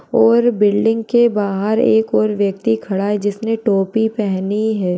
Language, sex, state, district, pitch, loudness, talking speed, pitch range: Hindi, female, Uttar Pradesh, Deoria, 215 Hz, -16 LUFS, 155 wpm, 200-225 Hz